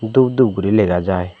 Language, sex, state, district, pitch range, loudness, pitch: Chakma, male, Tripura, Dhalai, 95-120 Hz, -16 LUFS, 105 Hz